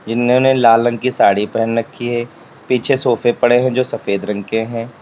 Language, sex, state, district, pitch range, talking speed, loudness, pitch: Hindi, male, Uttar Pradesh, Lalitpur, 115-125 Hz, 205 wpm, -15 LUFS, 120 Hz